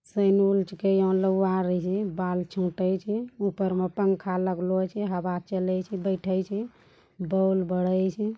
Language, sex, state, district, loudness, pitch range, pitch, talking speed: Angika, female, Bihar, Bhagalpur, -26 LUFS, 185-195 Hz, 190 Hz, 100 wpm